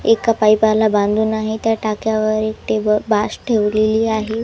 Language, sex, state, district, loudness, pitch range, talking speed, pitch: Marathi, female, Maharashtra, Washim, -17 LUFS, 215-220 Hz, 150 wpm, 215 Hz